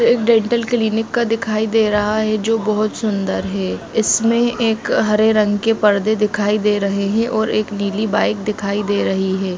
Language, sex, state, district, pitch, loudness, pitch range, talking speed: Hindi, female, Jharkhand, Sahebganj, 215 Hz, -17 LUFS, 205-225 Hz, 190 wpm